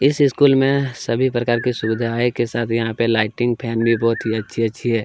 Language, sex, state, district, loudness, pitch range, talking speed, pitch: Hindi, male, Chhattisgarh, Kabirdham, -19 LUFS, 115-125 Hz, 225 wpm, 115 Hz